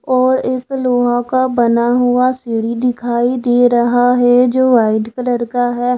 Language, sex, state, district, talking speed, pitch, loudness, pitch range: Hindi, female, Punjab, Fazilka, 160 wpm, 245 Hz, -14 LUFS, 240-255 Hz